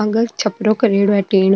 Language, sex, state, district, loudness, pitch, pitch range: Marwari, female, Rajasthan, Nagaur, -16 LUFS, 215 Hz, 200-220 Hz